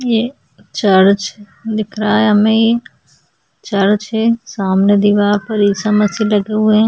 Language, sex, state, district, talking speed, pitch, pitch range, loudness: Hindi, female, Chhattisgarh, Sukma, 150 wpm, 210 Hz, 205-220 Hz, -14 LUFS